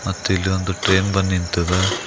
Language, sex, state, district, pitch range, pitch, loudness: Kannada, male, Karnataka, Bidar, 90-95 Hz, 95 Hz, -19 LUFS